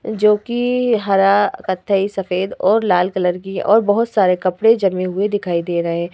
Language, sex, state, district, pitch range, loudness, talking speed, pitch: Hindi, female, Uttar Pradesh, Hamirpur, 185-210 Hz, -17 LUFS, 175 wpm, 195 Hz